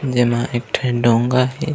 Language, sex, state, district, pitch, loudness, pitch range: Chhattisgarhi, male, Chhattisgarh, Raigarh, 125 Hz, -18 LUFS, 120-130 Hz